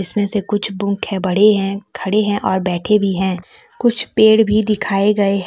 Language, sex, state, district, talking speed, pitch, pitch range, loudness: Hindi, female, Jharkhand, Deoghar, 175 wpm, 205 Hz, 195-210 Hz, -16 LUFS